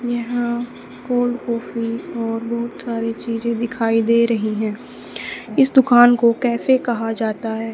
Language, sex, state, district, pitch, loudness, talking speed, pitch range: Hindi, female, Haryana, Charkhi Dadri, 235 Hz, -19 LUFS, 140 wpm, 230-240 Hz